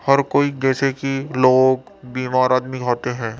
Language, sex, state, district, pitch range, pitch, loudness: Hindi, male, Rajasthan, Jaipur, 125-135 Hz, 130 Hz, -19 LUFS